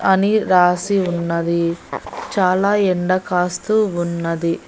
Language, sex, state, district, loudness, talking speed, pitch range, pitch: Telugu, female, Andhra Pradesh, Annamaya, -18 LUFS, 75 wpm, 170-195 Hz, 180 Hz